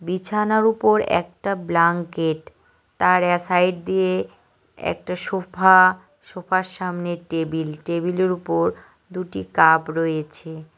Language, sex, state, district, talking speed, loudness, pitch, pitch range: Bengali, male, West Bengal, Cooch Behar, 100 wpm, -20 LUFS, 180 Hz, 165-185 Hz